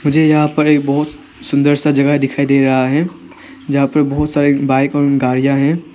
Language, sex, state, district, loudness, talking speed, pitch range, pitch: Hindi, male, Arunachal Pradesh, Papum Pare, -14 LUFS, 200 wpm, 140-150 Hz, 145 Hz